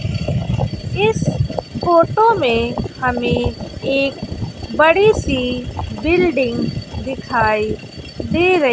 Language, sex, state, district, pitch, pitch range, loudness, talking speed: Hindi, female, Bihar, West Champaran, 305 Hz, 255-355 Hz, -17 LUFS, 75 wpm